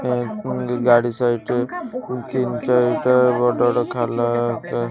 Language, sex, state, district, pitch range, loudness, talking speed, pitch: Odia, male, Odisha, Khordha, 120-125 Hz, -20 LUFS, 100 wpm, 120 Hz